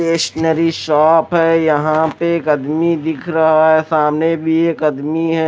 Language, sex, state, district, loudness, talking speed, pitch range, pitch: Hindi, male, Chandigarh, Chandigarh, -14 LUFS, 165 wpm, 155-165 Hz, 160 Hz